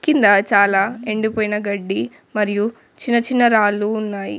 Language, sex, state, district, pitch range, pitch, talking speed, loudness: Telugu, female, Telangana, Mahabubabad, 200-220 Hz, 210 Hz, 125 wpm, -18 LUFS